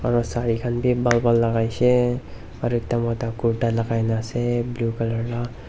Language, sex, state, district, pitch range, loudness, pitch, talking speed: Nagamese, male, Nagaland, Dimapur, 115-120 Hz, -22 LUFS, 120 Hz, 190 wpm